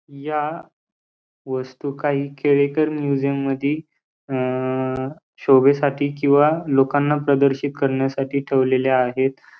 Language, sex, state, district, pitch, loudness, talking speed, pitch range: Marathi, male, Maharashtra, Pune, 140 Hz, -20 LUFS, 85 wpm, 135-145 Hz